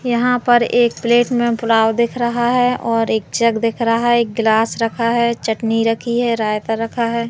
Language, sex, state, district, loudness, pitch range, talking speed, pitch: Hindi, female, Madhya Pradesh, Katni, -16 LUFS, 225-240 Hz, 205 wpm, 235 Hz